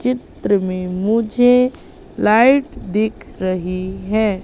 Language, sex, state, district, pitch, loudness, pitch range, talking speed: Hindi, female, Madhya Pradesh, Katni, 215 Hz, -17 LUFS, 185-245 Hz, 95 wpm